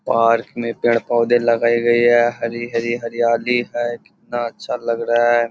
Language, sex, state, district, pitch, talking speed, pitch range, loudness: Hindi, male, Bihar, Purnia, 120 Hz, 165 wpm, 115-120 Hz, -18 LUFS